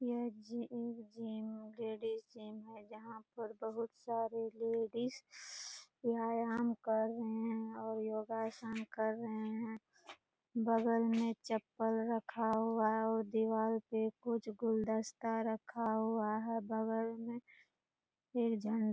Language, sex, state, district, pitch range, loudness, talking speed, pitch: Hindi, female, Bihar, Purnia, 220-230 Hz, -39 LUFS, 130 wpm, 225 Hz